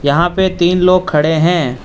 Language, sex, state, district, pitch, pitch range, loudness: Hindi, male, Arunachal Pradesh, Lower Dibang Valley, 175 Hz, 150-180 Hz, -13 LUFS